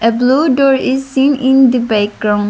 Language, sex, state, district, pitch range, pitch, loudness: English, female, Arunachal Pradesh, Lower Dibang Valley, 225-270 Hz, 260 Hz, -12 LUFS